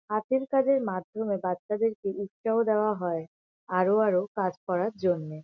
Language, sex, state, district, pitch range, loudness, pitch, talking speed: Bengali, female, West Bengal, Kolkata, 180-220 Hz, -28 LUFS, 200 Hz, 135 wpm